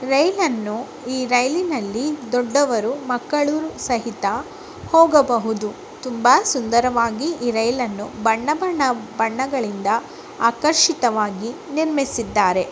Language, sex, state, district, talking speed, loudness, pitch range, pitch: Kannada, female, Karnataka, Bellary, 80 wpm, -20 LUFS, 230-295 Hz, 250 Hz